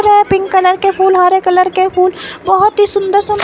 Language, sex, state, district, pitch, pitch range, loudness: Hindi, female, Himachal Pradesh, Shimla, 380 Hz, 370-405 Hz, -11 LUFS